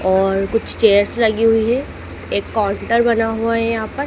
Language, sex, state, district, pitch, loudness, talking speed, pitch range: Hindi, female, Madhya Pradesh, Dhar, 225 Hz, -17 LUFS, 190 wpm, 205-230 Hz